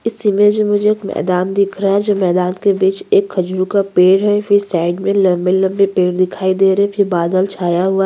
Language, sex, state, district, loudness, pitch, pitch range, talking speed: Hindi, female, Chhattisgarh, Sukma, -14 LUFS, 195 Hz, 185-200 Hz, 230 wpm